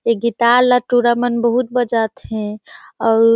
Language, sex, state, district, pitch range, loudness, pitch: Surgujia, female, Chhattisgarh, Sarguja, 230-245 Hz, -16 LUFS, 235 Hz